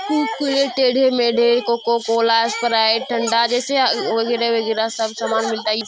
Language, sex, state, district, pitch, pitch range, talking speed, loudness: Hindi, female, Bihar, Purnia, 235 Hz, 225-250 Hz, 145 wpm, -18 LUFS